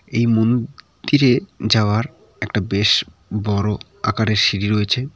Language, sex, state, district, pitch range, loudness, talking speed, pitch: Bengali, male, West Bengal, Cooch Behar, 105-120 Hz, -18 LUFS, 115 wpm, 110 Hz